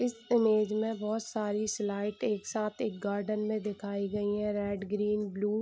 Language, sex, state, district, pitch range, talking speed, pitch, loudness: Hindi, female, Bihar, Saharsa, 205-215 Hz, 190 wpm, 210 Hz, -32 LUFS